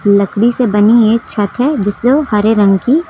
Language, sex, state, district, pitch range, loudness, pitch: Hindi, female, Uttar Pradesh, Lucknow, 205-245 Hz, -11 LUFS, 220 Hz